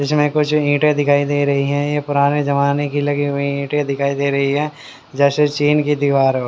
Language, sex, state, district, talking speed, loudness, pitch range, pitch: Hindi, male, Haryana, Jhajjar, 220 wpm, -17 LUFS, 140-145 Hz, 145 Hz